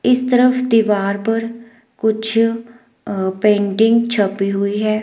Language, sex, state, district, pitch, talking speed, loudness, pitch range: Hindi, female, Himachal Pradesh, Shimla, 225 Hz, 120 wpm, -16 LUFS, 205-235 Hz